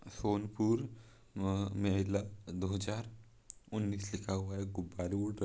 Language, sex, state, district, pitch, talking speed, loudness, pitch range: Hindi, male, Chhattisgarh, Raigarh, 100 Hz, 120 wpm, -37 LUFS, 95-110 Hz